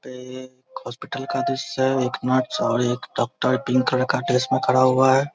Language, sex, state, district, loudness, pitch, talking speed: Hindi, male, Bihar, Araria, -21 LUFS, 130 Hz, 200 wpm